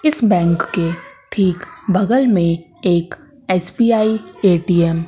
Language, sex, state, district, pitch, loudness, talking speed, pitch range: Hindi, female, Madhya Pradesh, Katni, 185 Hz, -16 LUFS, 120 wpm, 170-225 Hz